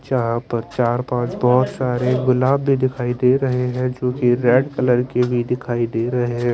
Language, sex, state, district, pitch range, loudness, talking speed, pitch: Hindi, male, Chandigarh, Chandigarh, 120-130 Hz, -19 LUFS, 190 wpm, 125 Hz